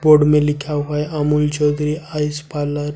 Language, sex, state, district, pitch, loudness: Hindi, male, Jharkhand, Ranchi, 150 Hz, -18 LUFS